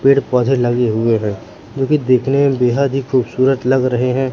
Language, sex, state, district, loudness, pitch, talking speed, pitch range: Hindi, male, Madhya Pradesh, Katni, -15 LUFS, 130 Hz, 210 wpm, 120-135 Hz